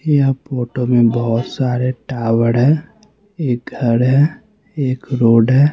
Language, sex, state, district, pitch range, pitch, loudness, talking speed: Hindi, male, Bihar, West Champaran, 120-145 Hz, 130 Hz, -16 LUFS, 135 wpm